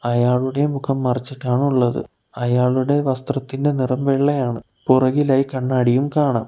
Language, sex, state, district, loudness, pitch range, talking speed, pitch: Malayalam, male, Kerala, Kollam, -19 LUFS, 125-140 Hz, 90 wpm, 130 Hz